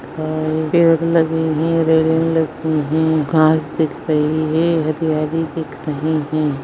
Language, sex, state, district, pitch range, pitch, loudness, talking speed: Hindi, female, West Bengal, Dakshin Dinajpur, 155-160 Hz, 160 Hz, -17 LUFS, 125 wpm